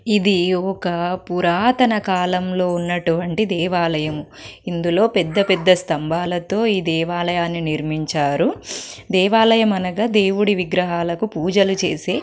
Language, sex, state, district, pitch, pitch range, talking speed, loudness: Telugu, female, Telangana, Karimnagar, 180 Hz, 170-195 Hz, 95 wpm, -19 LUFS